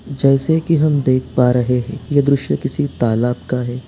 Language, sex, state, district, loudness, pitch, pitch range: Hindi, male, Bihar, Sitamarhi, -16 LUFS, 125 Hz, 120-140 Hz